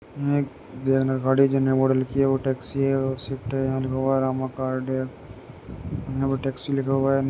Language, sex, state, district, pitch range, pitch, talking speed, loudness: Hindi, male, Uttar Pradesh, Jyotiba Phule Nagar, 130-135 Hz, 135 Hz, 155 wpm, -24 LUFS